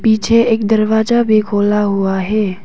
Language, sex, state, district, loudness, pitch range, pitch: Hindi, female, Arunachal Pradesh, Papum Pare, -14 LUFS, 205-220 Hz, 215 Hz